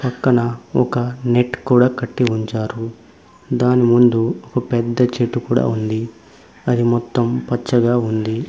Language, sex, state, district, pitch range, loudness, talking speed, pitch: Telugu, male, Telangana, Mahabubabad, 115-125 Hz, -18 LUFS, 120 wpm, 120 Hz